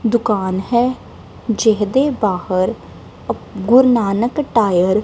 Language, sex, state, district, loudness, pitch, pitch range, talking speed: Punjabi, female, Punjab, Kapurthala, -16 LUFS, 225 Hz, 195-240 Hz, 95 wpm